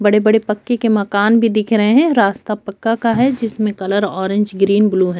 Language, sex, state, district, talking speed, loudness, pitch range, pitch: Hindi, female, Chhattisgarh, Kabirdham, 230 wpm, -15 LUFS, 200-225 Hz, 210 Hz